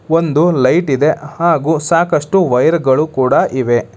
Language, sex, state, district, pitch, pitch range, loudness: Kannada, male, Karnataka, Bangalore, 155 Hz, 130-170 Hz, -13 LUFS